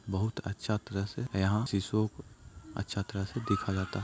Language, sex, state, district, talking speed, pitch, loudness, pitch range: Hindi, male, Bihar, Jahanabad, 180 wpm, 100 Hz, -33 LUFS, 100-110 Hz